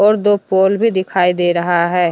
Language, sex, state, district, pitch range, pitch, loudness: Hindi, female, Jharkhand, Deoghar, 175-205 Hz, 190 Hz, -14 LUFS